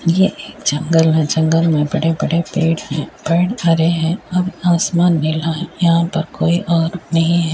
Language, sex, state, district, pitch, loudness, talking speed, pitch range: Hindi, female, Bihar, Muzaffarpur, 165 Hz, -16 LUFS, 175 wpm, 160-170 Hz